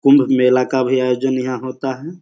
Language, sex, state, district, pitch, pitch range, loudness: Hindi, male, Bihar, Begusarai, 130 Hz, 130-135 Hz, -17 LUFS